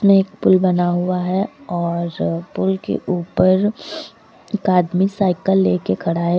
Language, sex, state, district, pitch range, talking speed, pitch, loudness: Hindi, female, Uttar Pradesh, Lucknow, 170-190 Hz, 150 wpm, 180 Hz, -18 LUFS